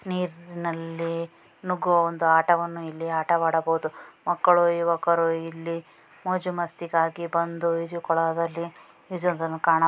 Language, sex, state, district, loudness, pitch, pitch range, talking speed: Kannada, female, Karnataka, Dakshina Kannada, -25 LUFS, 170 Hz, 165-170 Hz, 90 wpm